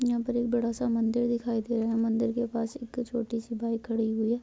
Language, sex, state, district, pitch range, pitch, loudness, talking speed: Hindi, female, Uttar Pradesh, Jyotiba Phule Nagar, 230-240 Hz, 235 Hz, -29 LUFS, 270 wpm